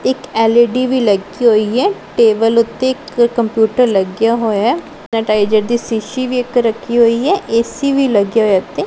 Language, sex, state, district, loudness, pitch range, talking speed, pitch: Punjabi, female, Punjab, Pathankot, -14 LUFS, 220-255 Hz, 170 wpm, 235 Hz